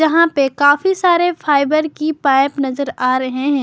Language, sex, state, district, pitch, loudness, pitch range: Hindi, female, Jharkhand, Garhwa, 285 Hz, -15 LUFS, 275-315 Hz